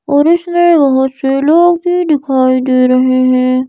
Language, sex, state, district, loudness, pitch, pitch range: Hindi, female, Madhya Pradesh, Bhopal, -11 LUFS, 270 Hz, 255-335 Hz